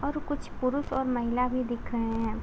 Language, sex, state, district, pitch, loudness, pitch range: Hindi, female, Uttar Pradesh, Gorakhpur, 255 Hz, -30 LUFS, 235-280 Hz